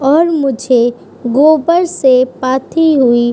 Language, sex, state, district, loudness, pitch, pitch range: Hindi, female, Uttar Pradesh, Budaun, -11 LUFS, 270 Hz, 250-315 Hz